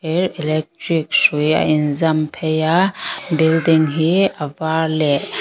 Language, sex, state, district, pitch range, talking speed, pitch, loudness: Mizo, female, Mizoram, Aizawl, 155-165 Hz, 135 wpm, 160 Hz, -17 LUFS